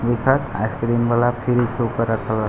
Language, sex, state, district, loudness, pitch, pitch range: Hindi, male, Bihar, Gopalganj, -20 LUFS, 120 Hz, 115-120 Hz